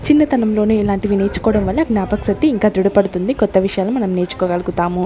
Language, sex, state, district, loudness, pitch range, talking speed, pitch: Telugu, female, Andhra Pradesh, Sri Satya Sai, -16 LUFS, 190-220 Hz, 140 wpm, 200 Hz